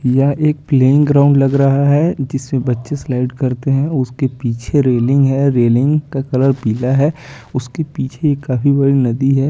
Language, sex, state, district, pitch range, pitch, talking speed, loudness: Hindi, male, Chandigarh, Chandigarh, 130-145 Hz, 135 Hz, 175 wpm, -15 LUFS